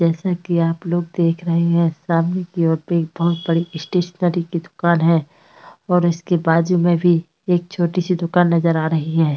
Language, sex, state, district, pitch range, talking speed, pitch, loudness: Hindi, female, Maharashtra, Chandrapur, 165-175 Hz, 190 wpm, 170 Hz, -18 LUFS